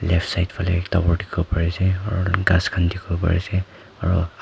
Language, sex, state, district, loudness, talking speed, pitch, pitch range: Nagamese, male, Nagaland, Kohima, -22 LUFS, 205 wpm, 90 Hz, 85-95 Hz